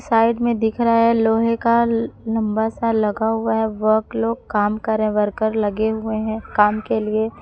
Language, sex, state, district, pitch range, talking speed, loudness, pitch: Hindi, female, Jharkhand, Palamu, 215-230 Hz, 185 wpm, -19 LUFS, 220 Hz